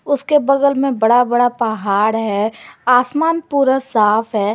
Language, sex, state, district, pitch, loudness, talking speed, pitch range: Hindi, female, Jharkhand, Garhwa, 245 Hz, -15 LUFS, 145 wpm, 220-275 Hz